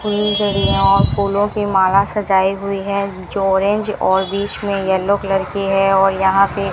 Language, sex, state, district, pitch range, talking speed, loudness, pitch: Hindi, female, Rajasthan, Bikaner, 195-205 Hz, 185 wpm, -16 LUFS, 195 Hz